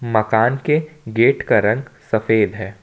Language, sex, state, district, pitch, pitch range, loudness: Hindi, male, Jharkhand, Ranchi, 110 Hz, 110-130 Hz, -18 LUFS